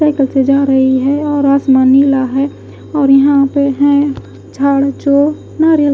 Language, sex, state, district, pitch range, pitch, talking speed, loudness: Hindi, female, Odisha, Khordha, 275-285 Hz, 280 Hz, 160 wpm, -11 LUFS